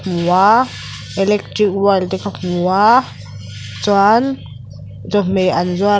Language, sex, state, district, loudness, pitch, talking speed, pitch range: Mizo, female, Mizoram, Aizawl, -15 LUFS, 190 Hz, 120 wpm, 125-205 Hz